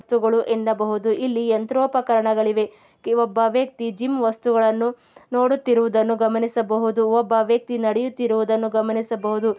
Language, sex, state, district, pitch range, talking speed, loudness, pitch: Kannada, female, Karnataka, Belgaum, 220-235 Hz, 95 wpm, -21 LUFS, 225 Hz